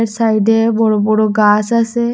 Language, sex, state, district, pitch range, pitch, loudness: Bengali, female, Tripura, West Tripura, 215-230 Hz, 225 Hz, -13 LUFS